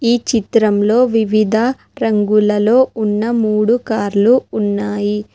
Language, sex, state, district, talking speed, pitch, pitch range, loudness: Telugu, female, Telangana, Hyderabad, 90 wpm, 215 Hz, 210-230 Hz, -15 LUFS